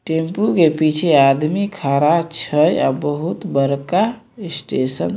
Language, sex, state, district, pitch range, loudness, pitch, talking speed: Maithili, male, Bihar, Samastipur, 140-185 Hz, -17 LUFS, 160 Hz, 130 wpm